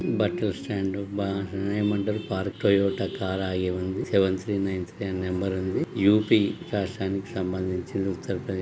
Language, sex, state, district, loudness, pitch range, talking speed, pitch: Telugu, male, Telangana, Nalgonda, -27 LUFS, 95-100 Hz, 155 wpm, 95 Hz